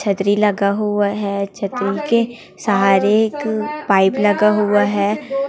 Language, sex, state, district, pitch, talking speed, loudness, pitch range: Hindi, female, Chhattisgarh, Raipur, 205 Hz, 130 wpm, -17 LUFS, 200-220 Hz